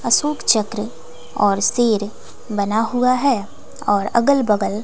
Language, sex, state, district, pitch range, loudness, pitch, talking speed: Hindi, female, Bihar, West Champaran, 205-240 Hz, -18 LUFS, 215 Hz, 125 wpm